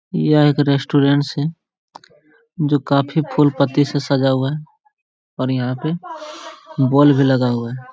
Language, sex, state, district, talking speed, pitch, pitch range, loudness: Hindi, male, Bihar, Jamui, 145 wpm, 145 Hz, 135-150 Hz, -17 LUFS